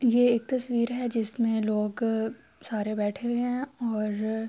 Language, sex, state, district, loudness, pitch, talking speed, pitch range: Urdu, female, Andhra Pradesh, Anantapur, -28 LUFS, 230 Hz, 145 wpm, 215-245 Hz